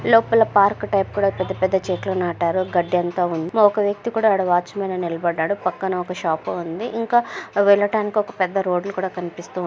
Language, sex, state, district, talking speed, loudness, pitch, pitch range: Telugu, female, Andhra Pradesh, Krishna, 160 wpm, -20 LUFS, 190 Hz, 180-205 Hz